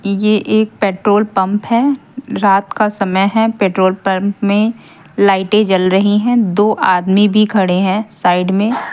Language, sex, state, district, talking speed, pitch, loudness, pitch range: Hindi, female, Haryana, Jhajjar, 155 wpm, 205 Hz, -13 LUFS, 190-215 Hz